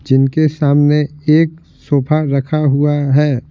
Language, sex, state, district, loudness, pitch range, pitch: Hindi, male, Bihar, Patna, -14 LUFS, 140-155 Hz, 145 Hz